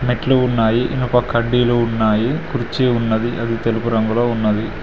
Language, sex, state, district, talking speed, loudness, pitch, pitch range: Telugu, male, Telangana, Mahabubabad, 135 wpm, -17 LUFS, 120 Hz, 115-125 Hz